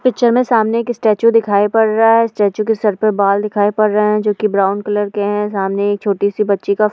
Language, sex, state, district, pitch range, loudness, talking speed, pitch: Hindi, female, Uttar Pradesh, Deoria, 205-220 Hz, -14 LUFS, 250 wpm, 210 Hz